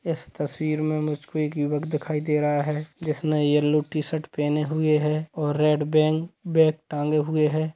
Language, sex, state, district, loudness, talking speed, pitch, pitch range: Hindi, male, Chhattisgarh, Sukma, -24 LUFS, 200 wpm, 150 Hz, 150-155 Hz